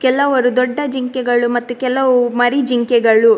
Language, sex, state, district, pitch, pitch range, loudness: Kannada, female, Karnataka, Dakshina Kannada, 250 Hz, 240-260 Hz, -15 LUFS